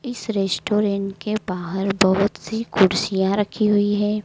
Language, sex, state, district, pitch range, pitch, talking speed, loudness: Hindi, female, Madhya Pradesh, Dhar, 190-210 Hz, 205 Hz, 140 wpm, -21 LUFS